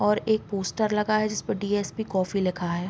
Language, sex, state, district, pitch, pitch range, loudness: Hindi, female, Bihar, Vaishali, 205 Hz, 190-215 Hz, -26 LUFS